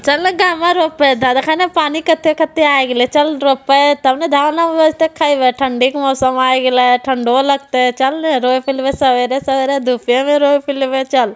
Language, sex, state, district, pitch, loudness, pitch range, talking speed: Hindi, female, Bihar, Jamui, 275 Hz, -13 LUFS, 260-305 Hz, 135 wpm